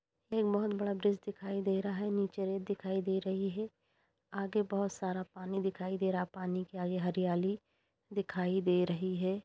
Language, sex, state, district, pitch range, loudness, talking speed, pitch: Hindi, female, Uttar Pradesh, Jalaun, 185-200 Hz, -35 LUFS, 205 wpm, 195 Hz